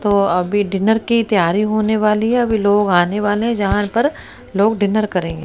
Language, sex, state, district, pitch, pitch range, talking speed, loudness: Hindi, female, Haryana, Rohtak, 210 Hz, 200-220 Hz, 185 wpm, -16 LUFS